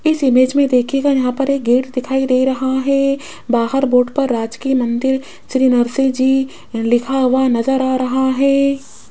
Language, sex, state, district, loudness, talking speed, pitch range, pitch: Hindi, female, Rajasthan, Jaipur, -16 LUFS, 165 wpm, 250-270 Hz, 265 Hz